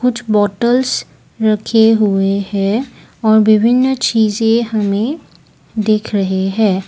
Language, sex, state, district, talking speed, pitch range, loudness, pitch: Hindi, female, Assam, Kamrup Metropolitan, 105 wpm, 205-230 Hz, -14 LUFS, 220 Hz